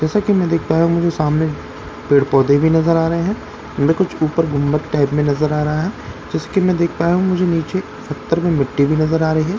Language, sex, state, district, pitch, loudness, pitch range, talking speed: Hindi, male, Bihar, Katihar, 160 Hz, -17 LUFS, 150-170 Hz, 265 wpm